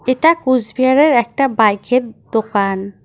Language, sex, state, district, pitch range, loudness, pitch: Bengali, female, West Bengal, Cooch Behar, 215-260 Hz, -15 LUFS, 245 Hz